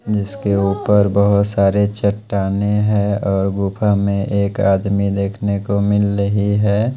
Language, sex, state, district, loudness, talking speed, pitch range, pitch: Hindi, male, Punjab, Pathankot, -17 LUFS, 140 wpm, 100-105 Hz, 100 Hz